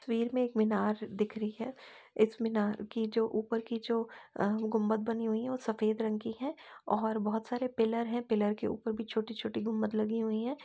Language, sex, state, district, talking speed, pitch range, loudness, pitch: Hindi, female, Uttar Pradesh, Etah, 220 wpm, 215-230 Hz, -33 LUFS, 225 Hz